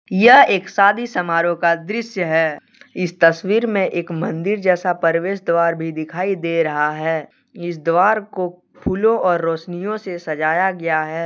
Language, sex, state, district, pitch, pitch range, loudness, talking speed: Hindi, male, Jharkhand, Deoghar, 175 Hz, 165-195 Hz, -18 LUFS, 160 wpm